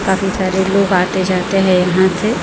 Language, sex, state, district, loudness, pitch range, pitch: Hindi, female, Chhattisgarh, Raipur, -14 LUFS, 185-195 Hz, 190 Hz